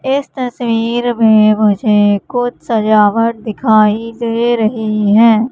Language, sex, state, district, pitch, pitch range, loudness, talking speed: Hindi, female, Madhya Pradesh, Katni, 225 Hz, 215-240 Hz, -12 LUFS, 110 wpm